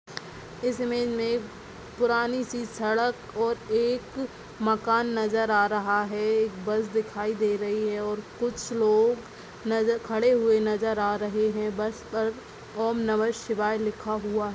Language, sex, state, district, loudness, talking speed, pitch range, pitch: Hindi, female, Chhattisgarh, Raigarh, -27 LUFS, 155 wpm, 215-230 Hz, 220 Hz